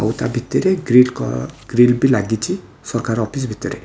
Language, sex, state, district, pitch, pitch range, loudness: Odia, male, Odisha, Khordha, 120 Hz, 110-130 Hz, -18 LUFS